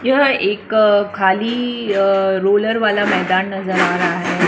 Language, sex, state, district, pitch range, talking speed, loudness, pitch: Hindi, female, Maharashtra, Washim, 190-215 Hz, 135 wpm, -16 LUFS, 200 Hz